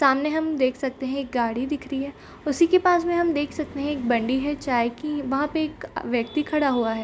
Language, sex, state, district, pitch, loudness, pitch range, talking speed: Hindi, female, Bihar, Purnia, 280 Hz, -24 LUFS, 255-305 Hz, 245 wpm